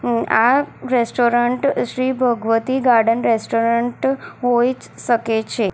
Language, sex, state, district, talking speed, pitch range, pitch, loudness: Gujarati, female, Gujarat, Valsad, 95 wpm, 230-255 Hz, 240 Hz, -18 LUFS